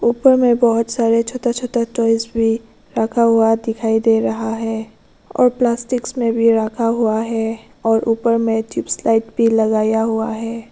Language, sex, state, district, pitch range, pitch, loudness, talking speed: Hindi, female, Arunachal Pradesh, Lower Dibang Valley, 225-235 Hz, 230 Hz, -17 LUFS, 170 wpm